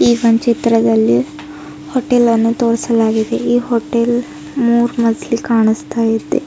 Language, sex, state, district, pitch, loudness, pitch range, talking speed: Kannada, female, Karnataka, Bidar, 235 Hz, -14 LUFS, 225-240 Hz, 95 wpm